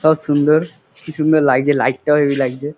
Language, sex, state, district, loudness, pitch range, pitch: Bengali, male, West Bengal, Kolkata, -15 LUFS, 140-155 Hz, 150 Hz